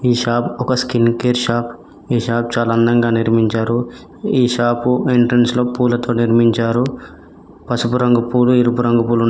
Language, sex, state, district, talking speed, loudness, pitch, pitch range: Telugu, male, Telangana, Mahabubabad, 135 wpm, -16 LUFS, 120 Hz, 115-125 Hz